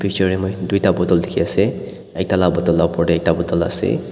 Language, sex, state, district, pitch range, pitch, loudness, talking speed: Nagamese, male, Nagaland, Dimapur, 85-95 Hz, 90 Hz, -18 LUFS, 205 wpm